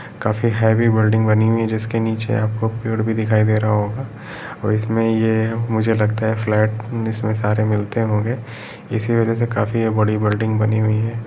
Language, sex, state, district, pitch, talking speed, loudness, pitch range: Hindi, male, Uttar Pradesh, Etah, 110 Hz, 185 wpm, -19 LUFS, 110-115 Hz